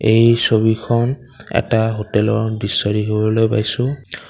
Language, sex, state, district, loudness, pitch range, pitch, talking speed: Assamese, male, Assam, Kamrup Metropolitan, -17 LUFS, 105-115 Hz, 110 Hz, 100 wpm